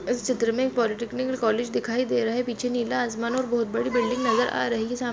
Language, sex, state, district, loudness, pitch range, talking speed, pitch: Hindi, female, Chhattisgarh, Bastar, -25 LUFS, 235-250 Hz, 270 wpm, 240 Hz